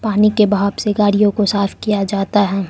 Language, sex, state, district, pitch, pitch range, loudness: Hindi, female, Arunachal Pradesh, Lower Dibang Valley, 205 Hz, 200-210 Hz, -16 LUFS